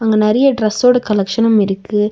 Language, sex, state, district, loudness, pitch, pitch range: Tamil, female, Tamil Nadu, Nilgiris, -14 LUFS, 215 Hz, 210-230 Hz